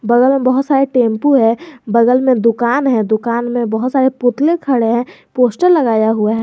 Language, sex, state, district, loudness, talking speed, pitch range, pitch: Hindi, male, Jharkhand, Garhwa, -14 LUFS, 195 wpm, 230-265 Hz, 245 Hz